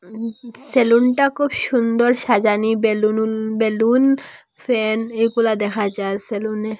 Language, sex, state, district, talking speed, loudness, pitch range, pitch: Bengali, female, Assam, Hailakandi, 95 wpm, -18 LUFS, 215-245 Hz, 225 Hz